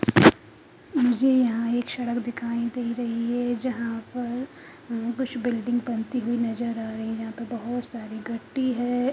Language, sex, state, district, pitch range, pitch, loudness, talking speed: Hindi, female, Haryana, Charkhi Dadri, 230-245 Hz, 240 Hz, -26 LUFS, 165 wpm